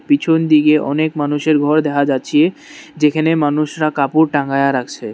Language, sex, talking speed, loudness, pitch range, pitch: Bengali, male, 140 wpm, -15 LUFS, 145-160 Hz, 150 Hz